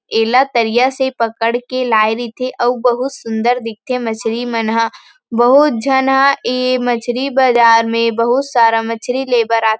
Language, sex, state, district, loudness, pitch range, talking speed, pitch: Chhattisgarhi, female, Chhattisgarh, Rajnandgaon, -14 LUFS, 230-255 Hz, 180 wpm, 240 Hz